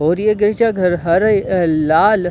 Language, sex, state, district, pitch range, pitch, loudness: Hindi, male, Jharkhand, Sahebganj, 170-210 Hz, 185 Hz, -15 LUFS